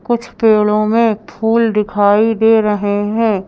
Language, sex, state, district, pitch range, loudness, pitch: Hindi, female, Madhya Pradesh, Bhopal, 210-225 Hz, -14 LUFS, 220 Hz